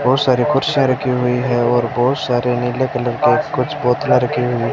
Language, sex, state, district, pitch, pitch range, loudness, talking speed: Hindi, male, Rajasthan, Bikaner, 125 Hz, 120-130 Hz, -16 LUFS, 215 wpm